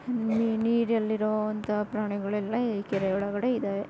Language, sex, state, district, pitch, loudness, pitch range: Kannada, female, Karnataka, Bellary, 215 Hz, -28 LUFS, 205-225 Hz